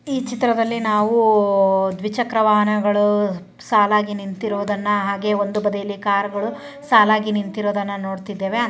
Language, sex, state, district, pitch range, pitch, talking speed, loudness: Kannada, female, Karnataka, Chamarajanagar, 200-220 Hz, 205 Hz, 95 wpm, -19 LUFS